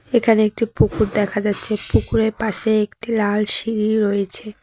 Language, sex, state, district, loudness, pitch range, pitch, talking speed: Bengali, female, West Bengal, Cooch Behar, -19 LUFS, 210-220 Hz, 215 Hz, 140 wpm